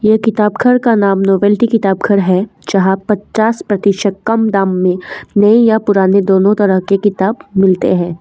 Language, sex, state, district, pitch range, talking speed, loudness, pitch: Hindi, female, Assam, Kamrup Metropolitan, 190-220 Hz, 175 wpm, -12 LUFS, 200 Hz